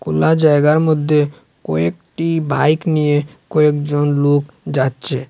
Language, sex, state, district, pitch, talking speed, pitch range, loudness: Bengali, male, Assam, Hailakandi, 145 Hz, 100 wpm, 140-155 Hz, -16 LUFS